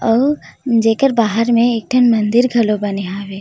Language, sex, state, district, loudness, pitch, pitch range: Chhattisgarhi, female, Chhattisgarh, Rajnandgaon, -15 LUFS, 230 Hz, 210-240 Hz